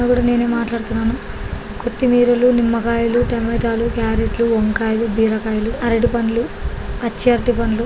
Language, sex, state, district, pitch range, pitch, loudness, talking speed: Telugu, female, Andhra Pradesh, Srikakulam, 225-240 Hz, 235 Hz, -18 LUFS, 105 wpm